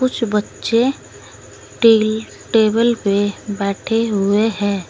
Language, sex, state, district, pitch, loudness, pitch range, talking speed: Hindi, female, Uttar Pradesh, Saharanpur, 210 Hz, -17 LUFS, 200-225 Hz, 100 wpm